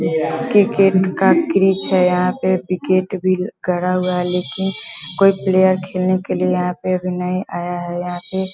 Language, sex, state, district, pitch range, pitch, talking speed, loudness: Hindi, female, Bihar, Vaishali, 180-190 Hz, 185 Hz, 185 wpm, -17 LUFS